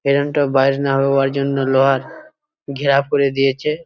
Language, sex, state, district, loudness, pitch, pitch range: Bengali, male, West Bengal, Jhargram, -17 LUFS, 140 Hz, 135-145 Hz